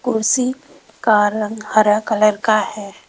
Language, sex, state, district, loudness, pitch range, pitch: Hindi, female, Rajasthan, Jaipur, -17 LUFS, 210-230 Hz, 215 Hz